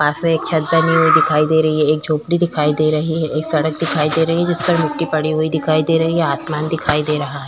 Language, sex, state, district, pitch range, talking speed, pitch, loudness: Hindi, female, Chhattisgarh, Korba, 150-160 Hz, 275 wpm, 155 Hz, -16 LUFS